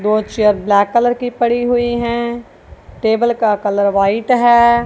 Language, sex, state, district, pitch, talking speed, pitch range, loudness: Hindi, female, Punjab, Kapurthala, 235 Hz, 160 wpm, 210-240 Hz, -14 LUFS